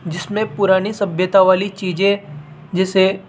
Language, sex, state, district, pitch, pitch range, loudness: Hindi, female, Rajasthan, Jaipur, 190 Hz, 180-200 Hz, -17 LUFS